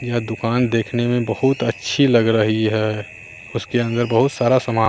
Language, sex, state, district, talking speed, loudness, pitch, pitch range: Hindi, male, Bihar, Katihar, 170 wpm, -19 LUFS, 115 Hz, 110-120 Hz